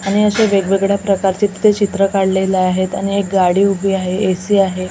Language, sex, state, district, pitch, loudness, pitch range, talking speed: Marathi, female, Maharashtra, Gondia, 195 Hz, -15 LUFS, 190-200 Hz, 185 wpm